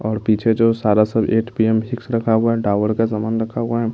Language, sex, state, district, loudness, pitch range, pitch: Hindi, male, Bihar, Katihar, -18 LUFS, 110-115 Hz, 115 Hz